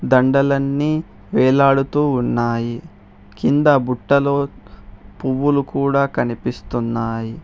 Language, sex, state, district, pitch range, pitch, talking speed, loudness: Telugu, male, Telangana, Hyderabad, 115-140 Hz, 130 Hz, 65 wpm, -18 LUFS